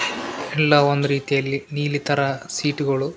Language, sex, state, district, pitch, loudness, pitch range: Kannada, male, Karnataka, Raichur, 145 Hz, -21 LUFS, 140-145 Hz